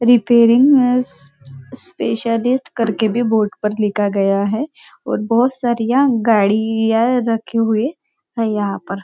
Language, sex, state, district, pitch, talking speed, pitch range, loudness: Hindi, female, Maharashtra, Nagpur, 230 Hz, 125 wpm, 210-245 Hz, -16 LUFS